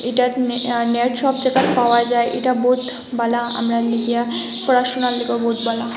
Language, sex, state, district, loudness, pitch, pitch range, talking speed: Bengali, female, Assam, Hailakandi, -16 LUFS, 240 Hz, 235-250 Hz, 170 wpm